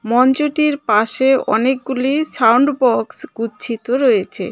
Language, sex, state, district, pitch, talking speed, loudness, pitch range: Bengali, female, West Bengal, Cooch Behar, 260 Hz, 95 wpm, -16 LUFS, 235-280 Hz